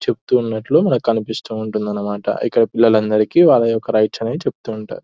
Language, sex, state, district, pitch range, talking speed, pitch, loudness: Telugu, male, Telangana, Nalgonda, 110-115 Hz, 145 wpm, 110 Hz, -17 LUFS